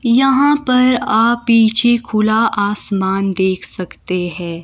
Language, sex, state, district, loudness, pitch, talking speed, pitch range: Hindi, female, Himachal Pradesh, Shimla, -14 LUFS, 220 Hz, 115 wpm, 190-240 Hz